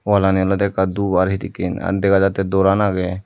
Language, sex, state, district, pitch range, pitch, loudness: Chakma, male, Tripura, Dhalai, 95-100 Hz, 95 Hz, -18 LUFS